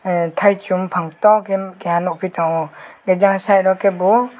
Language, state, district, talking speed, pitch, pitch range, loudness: Kokborok, Tripura, West Tripura, 150 wpm, 190 Hz, 180-200 Hz, -17 LUFS